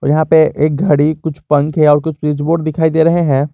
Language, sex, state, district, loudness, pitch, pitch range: Hindi, male, Jharkhand, Garhwa, -13 LUFS, 155 Hz, 150-160 Hz